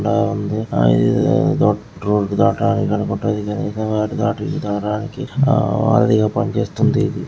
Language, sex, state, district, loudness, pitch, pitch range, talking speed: Telugu, male, Telangana, Karimnagar, -18 LUFS, 105 Hz, 100-115 Hz, 60 wpm